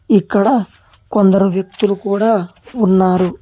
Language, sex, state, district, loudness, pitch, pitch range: Telugu, male, Telangana, Hyderabad, -15 LUFS, 200 Hz, 190-210 Hz